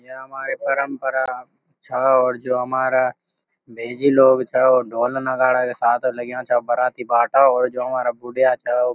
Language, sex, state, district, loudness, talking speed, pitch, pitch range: Garhwali, male, Uttarakhand, Uttarkashi, -19 LUFS, 170 wpm, 130 Hz, 125-130 Hz